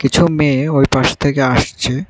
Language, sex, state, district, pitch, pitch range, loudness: Bengali, male, Tripura, West Tripura, 140 Hz, 135-150 Hz, -14 LUFS